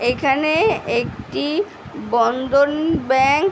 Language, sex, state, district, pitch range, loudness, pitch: Bengali, female, West Bengal, Paschim Medinipur, 260-315 Hz, -18 LUFS, 280 Hz